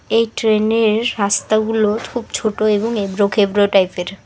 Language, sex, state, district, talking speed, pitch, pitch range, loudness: Bengali, female, West Bengal, Alipurduar, 155 wpm, 215 Hz, 200-225 Hz, -17 LUFS